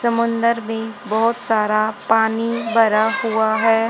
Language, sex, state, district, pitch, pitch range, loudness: Hindi, female, Haryana, Jhajjar, 225 Hz, 220-230 Hz, -18 LUFS